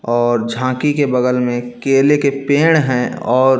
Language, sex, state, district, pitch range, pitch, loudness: Hindi, male, Chhattisgarh, Bilaspur, 120-140 Hz, 130 Hz, -15 LUFS